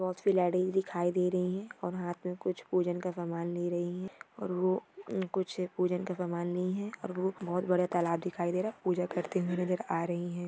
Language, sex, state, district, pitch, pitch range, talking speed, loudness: Hindi, female, Maharashtra, Aurangabad, 180 Hz, 175-185 Hz, 230 wpm, -33 LUFS